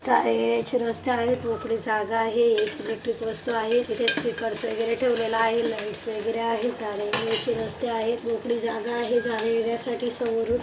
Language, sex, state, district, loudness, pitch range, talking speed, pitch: Marathi, female, Maharashtra, Dhule, -26 LUFS, 225-235 Hz, 180 wpm, 230 Hz